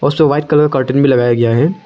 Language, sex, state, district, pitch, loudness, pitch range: Hindi, male, Arunachal Pradesh, Lower Dibang Valley, 140 Hz, -12 LUFS, 125-150 Hz